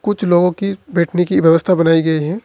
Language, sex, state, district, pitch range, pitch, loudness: Hindi, male, Jharkhand, Ranchi, 165-190 Hz, 175 Hz, -14 LUFS